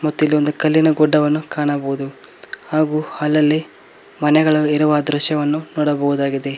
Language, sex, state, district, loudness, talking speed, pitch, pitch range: Kannada, male, Karnataka, Koppal, -17 LUFS, 110 wpm, 150 Hz, 145-155 Hz